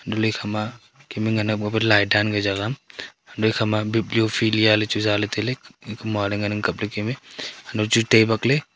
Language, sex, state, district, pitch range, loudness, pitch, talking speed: Wancho, male, Arunachal Pradesh, Longding, 105-110 Hz, -21 LUFS, 110 Hz, 170 wpm